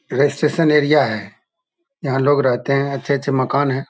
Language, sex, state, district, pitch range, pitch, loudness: Hindi, male, Bihar, Saharsa, 135-150 Hz, 140 Hz, -17 LUFS